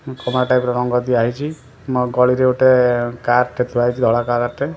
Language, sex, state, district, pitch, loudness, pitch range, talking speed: Odia, male, Odisha, Khordha, 125 Hz, -17 LUFS, 120-130 Hz, 175 wpm